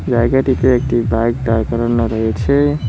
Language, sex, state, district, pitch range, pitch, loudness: Bengali, male, West Bengal, Cooch Behar, 115-130 Hz, 120 Hz, -15 LUFS